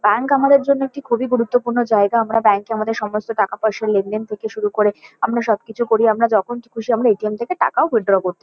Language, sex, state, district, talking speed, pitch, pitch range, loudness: Bengali, female, West Bengal, Kolkata, 230 wpm, 225 Hz, 210-240 Hz, -18 LUFS